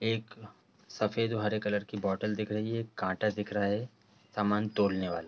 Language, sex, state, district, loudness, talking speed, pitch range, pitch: Hindi, male, Bihar, East Champaran, -32 LUFS, 180 wpm, 100-110 Hz, 105 Hz